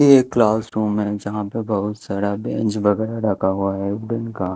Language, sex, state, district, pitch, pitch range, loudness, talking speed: Hindi, male, Chhattisgarh, Raipur, 105 Hz, 100-110 Hz, -21 LUFS, 200 wpm